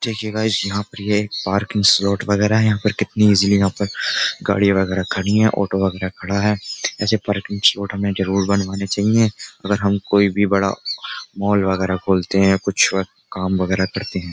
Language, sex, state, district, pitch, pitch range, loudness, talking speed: Hindi, male, Uttar Pradesh, Jyotiba Phule Nagar, 100 Hz, 95-105 Hz, -18 LUFS, 185 wpm